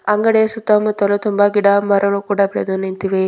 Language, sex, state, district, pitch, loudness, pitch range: Kannada, female, Karnataka, Bidar, 205 Hz, -16 LUFS, 200-210 Hz